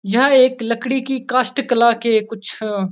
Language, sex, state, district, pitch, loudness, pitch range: Hindi, male, Uttarakhand, Uttarkashi, 235 Hz, -17 LUFS, 225-260 Hz